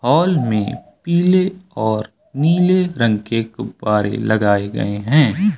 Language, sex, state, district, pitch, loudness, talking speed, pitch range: Hindi, male, Uttar Pradesh, Lucknow, 120 Hz, -17 LUFS, 120 wpm, 110-175 Hz